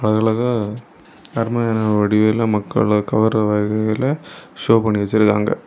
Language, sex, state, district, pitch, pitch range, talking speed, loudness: Tamil, male, Tamil Nadu, Kanyakumari, 110 Hz, 105-115 Hz, 115 wpm, -18 LUFS